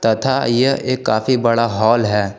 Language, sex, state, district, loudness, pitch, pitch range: Hindi, male, Jharkhand, Garhwa, -16 LUFS, 115 Hz, 110-130 Hz